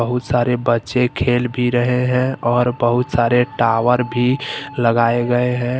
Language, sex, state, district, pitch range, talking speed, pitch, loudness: Hindi, male, Jharkhand, Deoghar, 120-125 Hz, 155 wpm, 125 Hz, -17 LUFS